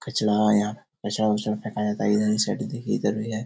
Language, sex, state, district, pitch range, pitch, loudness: Hindi, male, Bihar, Jahanabad, 105-110 Hz, 105 Hz, -24 LUFS